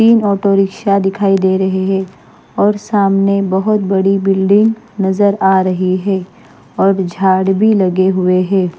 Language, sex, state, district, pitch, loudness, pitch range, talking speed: Hindi, female, Maharashtra, Mumbai Suburban, 195 Hz, -13 LUFS, 190-200 Hz, 150 wpm